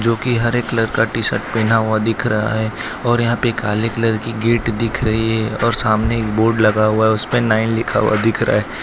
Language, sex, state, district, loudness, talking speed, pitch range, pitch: Hindi, male, Gujarat, Valsad, -17 LUFS, 230 wpm, 110-115 Hz, 115 Hz